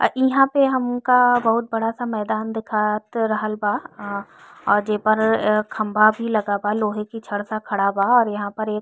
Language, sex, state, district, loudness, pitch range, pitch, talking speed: Bhojpuri, female, Uttar Pradesh, Ghazipur, -20 LUFS, 210-230 Hz, 215 Hz, 195 wpm